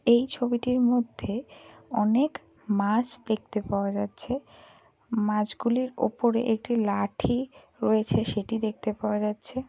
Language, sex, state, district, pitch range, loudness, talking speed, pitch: Bengali, female, West Bengal, Kolkata, 210-245 Hz, -27 LUFS, 105 wpm, 225 Hz